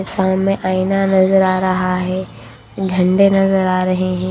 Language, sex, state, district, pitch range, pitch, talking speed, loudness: Hindi, female, Haryana, Rohtak, 185-190 Hz, 185 Hz, 155 wpm, -15 LUFS